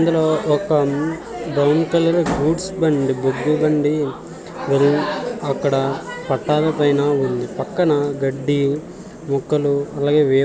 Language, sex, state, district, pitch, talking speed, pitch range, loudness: Telugu, male, Andhra Pradesh, Visakhapatnam, 145 Hz, 90 wpm, 140-155 Hz, -19 LUFS